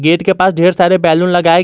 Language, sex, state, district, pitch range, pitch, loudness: Hindi, male, Jharkhand, Garhwa, 170-185 Hz, 175 Hz, -11 LUFS